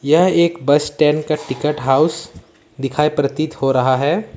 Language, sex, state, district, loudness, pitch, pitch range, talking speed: Hindi, male, Jharkhand, Ranchi, -17 LUFS, 150 Hz, 135-155 Hz, 150 wpm